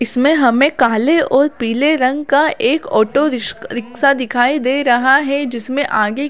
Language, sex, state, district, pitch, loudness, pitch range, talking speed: Hindi, female, Chhattisgarh, Bilaspur, 265 Hz, -14 LUFS, 240-285 Hz, 160 wpm